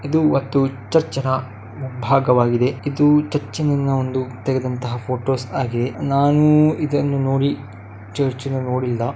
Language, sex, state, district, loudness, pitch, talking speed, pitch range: Kannada, male, Karnataka, Dakshina Kannada, -19 LUFS, 135 Hz, 105 wpm, 125-145 Hz